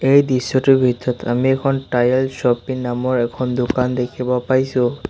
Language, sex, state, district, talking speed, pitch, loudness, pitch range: Assamese, male, Assam, Sonitpur, 140 wpm, 125 Hz, -18 LUFS, 125-130 Hz